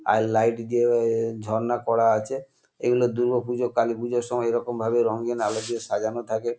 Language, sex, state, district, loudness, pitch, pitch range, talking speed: Bengali, male, West Bengal, North 24 Parganas, -24 LUFS, 120 Hz, 115-120 Hz, 155 wpm